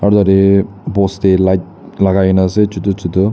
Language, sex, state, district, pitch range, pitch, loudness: Nagamese, male, Nagaland, Dimapur, 95-100 Hz, 95 Hz, -13 LUFS